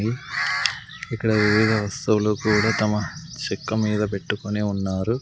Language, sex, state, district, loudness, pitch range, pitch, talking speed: Telugu, male, Andhra Pradesh, Sri Satya Sai, -23 LUFS, 105-110 Hz, 105 Hz, 105 wpm